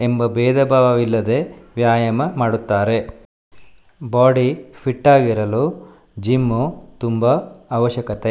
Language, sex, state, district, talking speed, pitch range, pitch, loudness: Kannada, male, Karnataka, Shimoga, 70 wpm, 115-130 Hz, 120 Hz, -18 LUFS